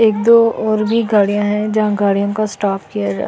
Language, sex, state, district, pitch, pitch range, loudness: Hindi, female, Delhi, New Delhi, 210 Hz, 200-220 Hz, -15 LUFS